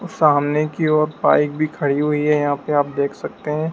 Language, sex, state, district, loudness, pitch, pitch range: Hindi, male, Madhya Pradesh, Dhar, -19 LUFS, 150 Hz, 145-155 Hz